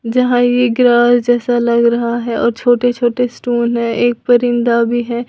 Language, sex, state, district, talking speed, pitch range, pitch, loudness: Hindi, female, Uttar Pradesh, Lalitpur, 195 wpm, 235-245 Hz, 240 Hz, -13 LUFS